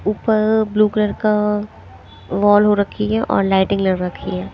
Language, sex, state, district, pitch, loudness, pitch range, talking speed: Hindi, female, Himachal Pradesh, Shimla, 205 Hz, -17 LUFS, 190-215 Hz, 185 wpm